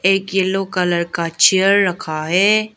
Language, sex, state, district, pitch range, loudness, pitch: Hindi, female, Arunachal Pradesh, Lower Dibang Valley, 175-195 Hz, -16 LUFS, 190 Hz